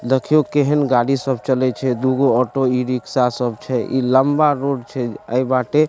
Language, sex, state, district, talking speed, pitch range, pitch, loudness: Maithili, male, Bihar, Supaul, 185 wpm, 125-140 Hz, 130 Hz, -18 LUFS